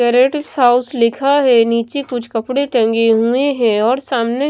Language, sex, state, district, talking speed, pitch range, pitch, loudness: Hindi, female, Himachal Pradesh, Shimla, 145 wpm, 230-275 Hz, 245 Hz, -15 LUFS